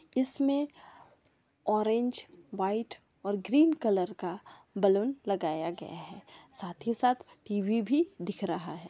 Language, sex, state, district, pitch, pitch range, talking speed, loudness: Marwari, female, Rajasthan, Churu, 205 Hz, 185-250 Hz, 130 wpm, -31 LUFS